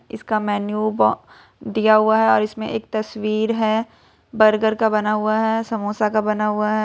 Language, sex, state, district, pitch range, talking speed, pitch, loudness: Hindi, female, Jharkhand, Ranchi, 210-220 Hz, 185 wpm, 215 Hz, -19 LUFS